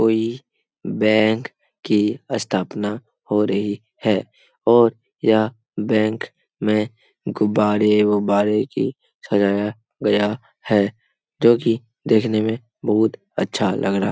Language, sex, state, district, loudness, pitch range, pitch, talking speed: Hindi, male, Bihar, Jamui, -20 LUFS, 105-115 Hz, 110 Hz, 105 wpm